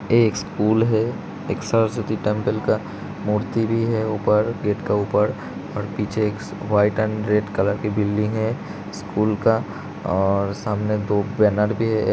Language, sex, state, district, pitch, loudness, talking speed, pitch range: Hindi, male, Uttar Pradesh, Hamirpur, 105 Hz, -22 LUFS, 160 wpm, 105-110 Hz